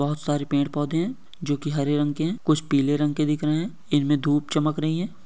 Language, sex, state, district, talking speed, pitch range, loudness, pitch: Hindi, male, Uttar Pradesh, Etah, 240 wpm, 145-160 Hz, -24 LUFS, 150 Hz